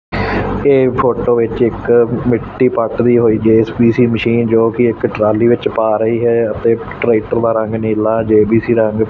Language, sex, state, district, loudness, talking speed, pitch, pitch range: Punjabi, male, Punjab, Fazilka, -13 LUFS, 170 wpm, 115 Hz, 110-120 Hz